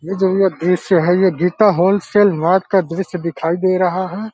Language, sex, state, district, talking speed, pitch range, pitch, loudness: Hindi, male, Uttar Pradesh, Deoria, 205 wpm, 175-195 Hz, 185 Hz, -16 LUFS